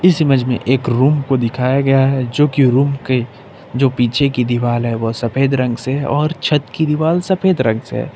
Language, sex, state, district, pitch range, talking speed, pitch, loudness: Hindi, male, Jharkhand, Ranchi, 125-145 Hz, 220 wpm, 135 Hz, -15 LUFS